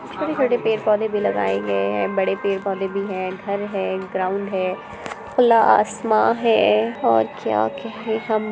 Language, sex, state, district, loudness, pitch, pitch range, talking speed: Hindi, female, Bihar, Muzaffarpur, -20 LUFS, 200 Hz, 185-220 Hz, 150 wpm